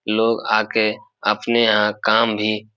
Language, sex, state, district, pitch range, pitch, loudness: Hindi, male, Bihar, Supaul, 105-110 Hz, 110 Hz, -18 LUFS